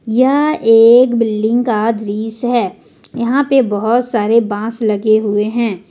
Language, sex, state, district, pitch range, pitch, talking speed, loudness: Hindi, female, Jharkhand, Ranchi, 215-240 Hz, 225 Hz, 140 wpm, -13 LUFS